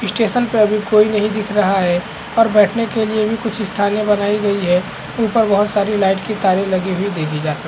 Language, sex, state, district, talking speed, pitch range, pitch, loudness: Hindi, male, Bihar, Saharsa, 225 wpm, 190-215 Hz, 210 Hz, -16 LUFS